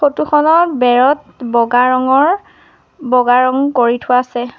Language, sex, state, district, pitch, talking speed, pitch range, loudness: Assamese, female, Assam, Sonitpur, 255 Hz, 130 wpm, 245-295 Hz, -13 LUFS